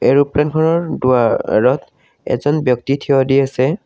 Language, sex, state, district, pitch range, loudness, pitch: Assamese, male, Assam, Kamrup Metropolitan, 130-150 Hz, -15 LUFS, 140 Hz